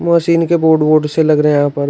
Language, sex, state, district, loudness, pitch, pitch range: Hindi, male, Uttar Pradesh, Shamli, -12 LUFS, 155 Hz, 150-165 Hz